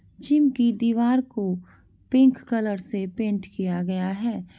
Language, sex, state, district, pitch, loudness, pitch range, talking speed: Angika, male, Bihar, Madhepura, 220 Hz, -24 LUFS, 190-250 Hz, 145 wpm